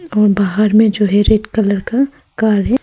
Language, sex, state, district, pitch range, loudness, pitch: Hindi, female, Arunachal Pradesh, Papum Pare, 205-220 Hz, -14 LUFS, 215 Hz